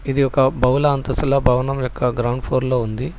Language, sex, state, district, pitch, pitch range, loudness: Telugu, male, Telangana, Hyderabad, 130 Hz, 125-135 Hz, -19 LUFS